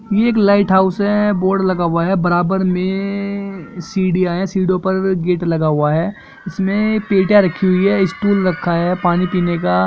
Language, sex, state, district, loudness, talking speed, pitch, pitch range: Hindi, male, Jharkhand, Jamtara, -16 LUFS, 195 wpm, 190 Hz, 175-200 Hz